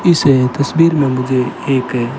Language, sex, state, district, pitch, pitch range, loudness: Hindi, male, Rajasthan, Bikaner, 135 Hz, 125-145 Hz, -14 LUFS